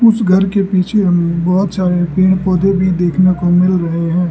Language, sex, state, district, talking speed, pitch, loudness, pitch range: Hindi, male, Arunachal Pradesh, Lower Dibang Valley, 195 wpm, 185 Hz, -13 LUFS, 175-190 Hz